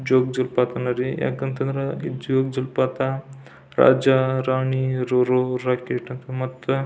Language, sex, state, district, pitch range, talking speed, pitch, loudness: Kannada, male, Karnataka, Belgaum, 125-135 Hz, 105 wpm, 130 Hz, -22 LUFS